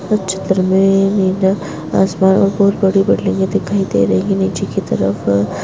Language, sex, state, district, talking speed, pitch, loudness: Hindi, female, Uttarakhand, Tehri Garhwal, 180 wpm, 190 Hz, -15 LUFS